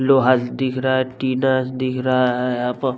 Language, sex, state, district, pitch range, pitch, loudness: Hindi, male, Bihar, West Champaran, 125-130 Hz, 130 Hz, -19 LUFS